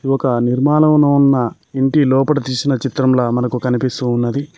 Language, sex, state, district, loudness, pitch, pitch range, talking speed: Telugu, male, Telangana, Mahabubabad, -15 LUFS, 135 Hz, 125-140 Hz, 130 wpm